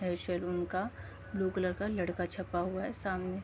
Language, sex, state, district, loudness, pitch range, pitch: Hindi, female, Uttar Pradesh, Gorakhpur, -36 LUFS, 180-190 Hz, 185 Hz